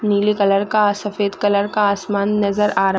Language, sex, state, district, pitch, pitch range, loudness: Hindi, female, Chhattisgarh, Raigarh, 205 Hz, 200-210 Hz, -18 LUFS